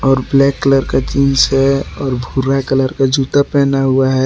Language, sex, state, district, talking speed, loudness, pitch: Hindi, male, Jharkhand, Garhwa, 195 wpm, -14 LUFS, 135 Hz